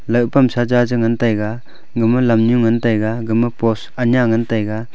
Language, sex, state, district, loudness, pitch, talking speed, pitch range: Wancho, male, Arunachal Pradesh, Longding, -16 LUFS, 115 Hz, 180 wpm, 115-120 Hz